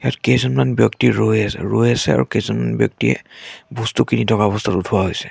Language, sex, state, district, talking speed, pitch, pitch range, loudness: Assamese, male, Assam, Sonitpur, 170 wpm, 105 Hz, 65-110 Hz, -17 LUFS